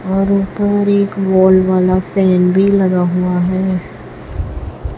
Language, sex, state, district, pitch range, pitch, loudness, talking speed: Hindi, female, Chhattisgarh, Raipur, 185-195 Hz, 190 Hz, -13 LUFS, 120 wpm